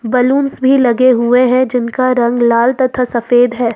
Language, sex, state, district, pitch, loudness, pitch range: Hindi, female, Jharkhand, Ranchi, 250 Hz, -12 LUFS, 240-255 Hz